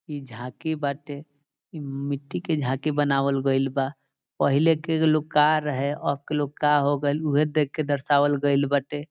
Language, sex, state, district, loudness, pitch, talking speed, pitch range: Bhojpuri, male, Bihar, Saran, -24 LUFS, 145 Hz, 180 wpm, 140-150 Hz